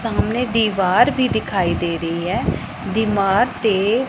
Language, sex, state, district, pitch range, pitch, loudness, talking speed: Punjabi, female, Punjab, Pathankot, 190-240 Hz, 215 Hz, -19 LUFS, 145 wpm